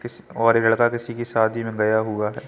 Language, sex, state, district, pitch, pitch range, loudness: Hindi, male, Uttar Pradesh, Jyotiba Phule Nagar, 115 Hz, 110-120 Hz, -21 LUFS